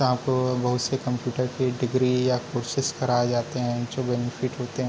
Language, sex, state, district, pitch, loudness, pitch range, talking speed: Hindi, male, Chhattisgarh, Bilaspur, 125 Hz, -25 LUFS, 125-130 Hz, 195 wpm